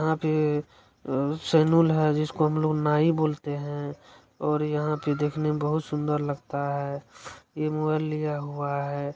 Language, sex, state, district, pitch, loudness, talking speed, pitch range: Hindi, male, Bihar, Saran, 150 Hz, -26 LUFS, 150 wpm, 145-155 Hz